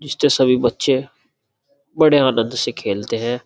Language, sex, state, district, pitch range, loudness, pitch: Hindi, male, Uttar Pradesh, Muzaffarnagar, 120-145 Hz, -17 LUFS, 130 Hz